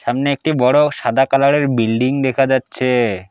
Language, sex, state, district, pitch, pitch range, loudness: Bengali, male, West Bengal, Alipurduar, 130 Hz, 125-140 Hz, -16 LUFS